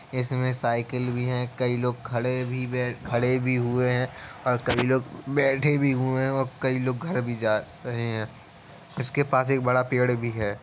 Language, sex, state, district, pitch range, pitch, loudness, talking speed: Hindi, male, Uttar Pradesh, Jalaun, 120-130 Hz, 125 Hz, -26 LUFS, 195 wpm